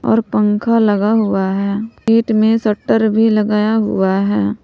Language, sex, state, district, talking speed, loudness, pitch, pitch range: Hindi, female, Jharkhand, Palamu, 155 wpm, -15 LUFS, 215 Hz, 205-225 Hz